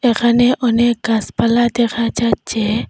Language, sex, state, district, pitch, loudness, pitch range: Bengali, female, Assam, Hailakandi, 235 Hz, -16 LUFS, 225-240 Hz